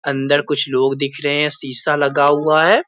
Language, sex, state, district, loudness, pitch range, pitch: Hindi, male, Bihar, Muzaffarpur, -16 LUFS, 140-150 Hz, 145 Hz